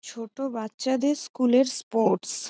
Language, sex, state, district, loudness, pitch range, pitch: Bengali, female, West Bengal, Malda, -25 LUFS, 225-270 Hz, 255 Hz